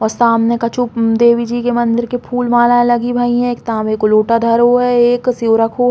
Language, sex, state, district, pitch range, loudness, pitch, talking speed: Bundeli, female, Uttar Pradesh, Hamirpur, 230-245 Hz, -13 LUFS, 240 Hz, 235 wpm